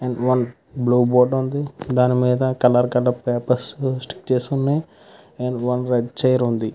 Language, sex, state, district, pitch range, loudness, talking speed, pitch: Telugu, male, Andhra Pradesh, Krishna, 125-130 Hz, -20 LUFS, 140 wpm, 125 Hz